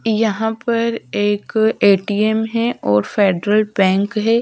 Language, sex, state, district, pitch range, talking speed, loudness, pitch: Hindi, female, Bihar, Patna, 200-225 Hz, 150 wpm, -17 LUFS, 215 Hz